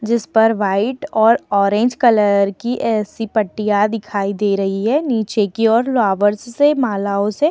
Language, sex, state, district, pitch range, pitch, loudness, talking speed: Hindi, female, Uttar Pradesh, Muzaffarnagar, 205-235 Hz, 220 Hz, -16 LUFS, 160 wpm